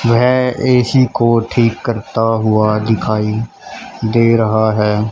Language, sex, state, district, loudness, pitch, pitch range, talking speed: Hindi, male, Haryana, Charkhi Dadri, -14 LUFS, 115 Hz, 110-120 Hz, 115 wpm